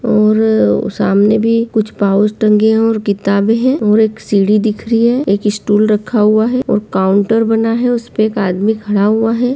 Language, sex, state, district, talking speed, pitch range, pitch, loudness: Hindi, female, Uttar Pradesh, Jyotiba Phule Nagar, 200 wpm, 205-225 Hz, 215 Hz, -13 LUFS